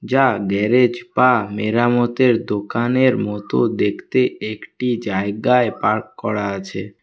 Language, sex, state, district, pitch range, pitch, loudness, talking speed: Bengali, male, West Bengal, Alipurduar, 105-125 Hz, 115 Hz, -18 LUFS, 100 wpm